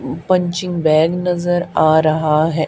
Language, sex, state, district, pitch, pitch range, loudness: Hindi, male, Haryana, Charkhi Dadri, 165 Hz, 155-175 Hz, -16 LUFS